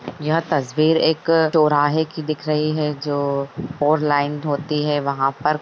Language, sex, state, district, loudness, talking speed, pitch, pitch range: Hindi, female, Jharkhand, Sahebganj, -20 LUFS, 170 wpm, 150 Hz, 145-155 Hz